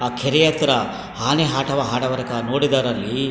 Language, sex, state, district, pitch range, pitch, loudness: Kannada, male, Karnataka, Chamarajanagar, 125-140 Hz, 135 Hz, -20 LUFS